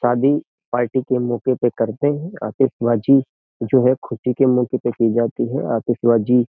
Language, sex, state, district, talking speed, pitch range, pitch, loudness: Hindi, male, Uttar Pradesh, Jyotiba Phule Nagar, 165 wpm, 120-130 Hz, 120 Hz, -19 LUFS